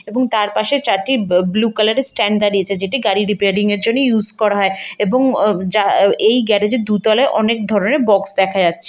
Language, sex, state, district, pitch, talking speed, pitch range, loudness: Bengali, female, West Bengal, Malda, 210 Hz, 210 wpm, 200-230 Hz, -15 LUFS